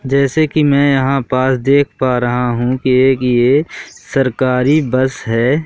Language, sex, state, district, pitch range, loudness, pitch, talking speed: Hindi, male, Madhya Pradesh, Katni, 125-140 Hz, -14 LUFS, 130 Hz, 160 wpm